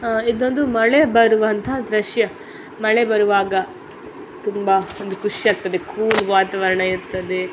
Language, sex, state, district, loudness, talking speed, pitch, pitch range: Kannada, female, Karnataka, Dakshina Kannada, -18 LUFS, 105 wpm, 210 Hz, 195-225 Hz